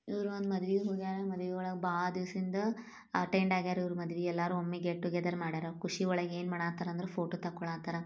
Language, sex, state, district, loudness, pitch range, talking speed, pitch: Kannada, female, Karnataka, Bijapur, -36 LUFS, 175-190 Hz, 150 wpm, 180 Hz